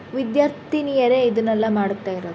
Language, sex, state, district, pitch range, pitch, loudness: Kannada, female, Karnataka, Shimoga, 200-265 Hz, 240 Hz, -20 LUFS